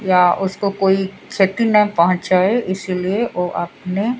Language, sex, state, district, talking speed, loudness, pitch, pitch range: Hindi, female, Odisha, Sambalpur, 145 wpm, -17 LUFS, 190 Hz, 185-200 Hz